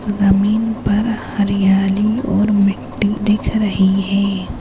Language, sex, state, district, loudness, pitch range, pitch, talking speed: Hindi, female, Maharashtra, Chandrapur, -16 LUFS, 195-210 Hz, 205 Hz, 105 wpm